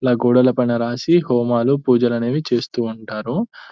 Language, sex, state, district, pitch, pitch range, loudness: Telugu, male, Telangana, Nalgonda, 120 Hz, 120-130 Hz, -18 LUFS